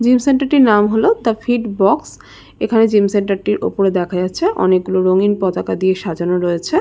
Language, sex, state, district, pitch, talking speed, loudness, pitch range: Bengali, female, West Bengal, Jalpaiguri, 205 Hz, 210 wpm, -15 LUFS, 185-225 Hz